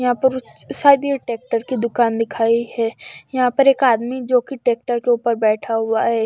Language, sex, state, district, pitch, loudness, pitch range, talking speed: Hindi, female, Haryana, Charkhi Dadri, 240 Hz, -18 LUFS, 230-260 Hz, 180 wpm